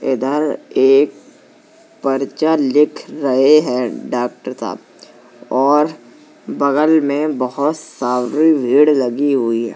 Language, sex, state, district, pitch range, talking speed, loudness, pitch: Hindi, male, Uttar Pradesh, Jalaun, 125-150 Hz, 105 wpm, -16 LUFS, 140 Hz